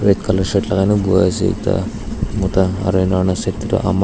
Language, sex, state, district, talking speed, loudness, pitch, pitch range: Nagamese, male, Nagaland, Dimapur, 195 wpm, -17 LUFS, 95 Hz, 95-105 Hz